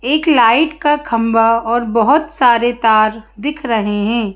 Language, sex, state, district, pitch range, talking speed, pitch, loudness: Hindi, female, Madhya Pradesh, Bhopal, 225-295 Hz, 150 wpm, 235 Hz, -14 LUFS